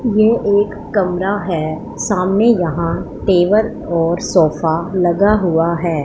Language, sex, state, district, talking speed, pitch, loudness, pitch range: Hindi, female, Punjab, Pathankot, 120 wpm, 180 Hz, -16 LUFS, 170-210 Hz